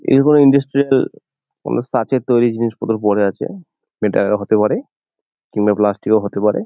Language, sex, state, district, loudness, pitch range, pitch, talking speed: Bengali, male, West Bengal, Jalpaiguri, -16 LUFS, 105-135 Hz, 110 Hz, 145 wpm